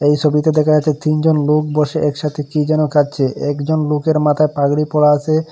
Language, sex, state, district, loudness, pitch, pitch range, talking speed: Bengali, male, Assam, Hailakandi, -15 LUFS, 150 Hz, 150-155 Hz, 185 wpm